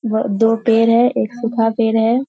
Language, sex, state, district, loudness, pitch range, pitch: Hindi, female, Bihar, Purnia, -15 LUFS, 225-230 Hz, 225 Hz